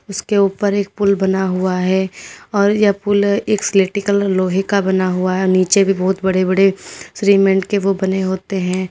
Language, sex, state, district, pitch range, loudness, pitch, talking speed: Hindi, female, Uttar Pradesh, Lalitpur, 190-200 Hz, -16 LUFS, 195 Hz, 195 wpm